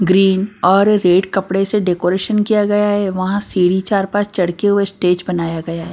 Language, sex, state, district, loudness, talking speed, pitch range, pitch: Hindi, female, Bihar, Patna, -15 LUFS, 190 wpm, 180-205 Hz, 195 Hz